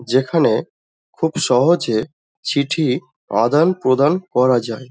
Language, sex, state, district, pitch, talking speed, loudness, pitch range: Bengali, male, West Bengal, Dakshin Dinajpur, 130 Hz, 100 wpm, -17 LUFS, 120-160 Hz